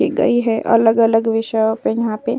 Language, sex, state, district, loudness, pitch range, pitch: Hindi, female, Uttar Pradesh, Etah, -16 LUFS, 225-230 Hz, 225 Hz